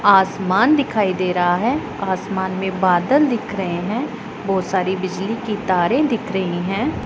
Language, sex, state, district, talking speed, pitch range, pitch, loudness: Hindi, female, Punjab, Pathankot, 160 wpm, 185-225 Hz, 195 Hz, -19 LUFS